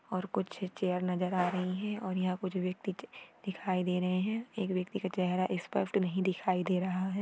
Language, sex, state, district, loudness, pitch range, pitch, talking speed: Hindi, female, Maharashtra, Aurangabad, -34 LUFS, 185-195 Hz, 185 Hz, 210 wpm